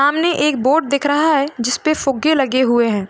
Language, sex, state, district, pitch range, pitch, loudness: Hindi, female, Uttar Pradesh, Hamirpur, 250-305 Hz, 280 Hz, -16 LUFS